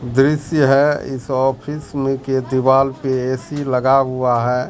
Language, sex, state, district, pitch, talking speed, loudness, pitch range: Hindi, male, Bihar, Katihar, 135 Hz, 155 wpm, -17 LUFS, 130-140 Hz